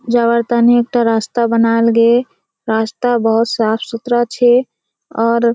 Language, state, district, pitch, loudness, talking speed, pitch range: Surjapuri, Bihar, Kishanganj, 235 Hz, -14 LUFS, 130 wpm, 230-240 Hz